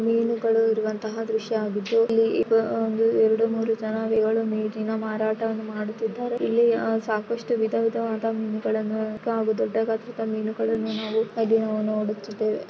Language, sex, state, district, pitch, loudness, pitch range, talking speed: Kannada, female, Karnataka, Shimoga, 220 Hz, -25 LUFS, 220-225 Hz, 120 wpm